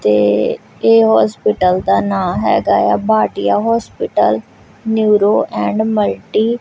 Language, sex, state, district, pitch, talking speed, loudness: Punjabi, female, Punjab, Kapurthala, 195 Hz, 125 wpm, -14 LUFS